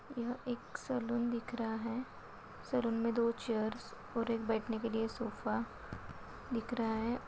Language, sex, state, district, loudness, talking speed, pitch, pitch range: Hindi, female, Chhattisgarh, Bilaspur, -38 LUFS, 155 wpm, 230 Hz, 225-240 Hz